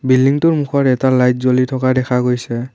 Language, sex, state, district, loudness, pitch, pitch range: Assamese, male, Assam, Kamrup Metropolitan, -15 LUFS, 130 Hz, 125-130 Hz